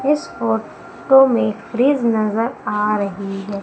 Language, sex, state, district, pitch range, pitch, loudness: Hindi, female, Madhya Pradesh, Umaria, 200-255 Hz, 220 Hz, -18 LUFS